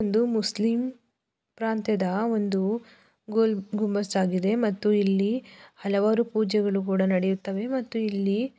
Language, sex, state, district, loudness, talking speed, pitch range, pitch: Kannada, female, Karnataka, Belgaum, -26 LUFS, 100 wpm, 195-225 Hz, 210 Hz